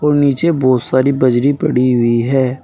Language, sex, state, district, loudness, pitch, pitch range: Hindi, male, Uttar Pradesh, Saharanpur, -14 LUFS, 130 Hz, 125-140 Hz